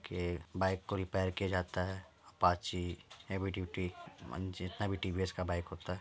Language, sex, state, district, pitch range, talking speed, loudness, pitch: Hindi, male, Uttar Pradesh, Ghazipur, 90-95 Hz, 180 wpm, -38 LUFS, 90 Hz